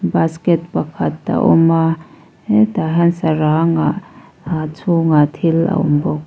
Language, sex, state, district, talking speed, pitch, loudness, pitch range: Mizo, female, Mizoram, Aizawl, 155 wpm, 160 Hz, -16 LUFS, 155-165 Hz